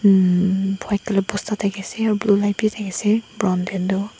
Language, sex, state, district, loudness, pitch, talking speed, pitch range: Nagamese, female, Nagaland, Dimapur, -20 LUFS, 200 Hz, 170 wpm, 190-210 Hz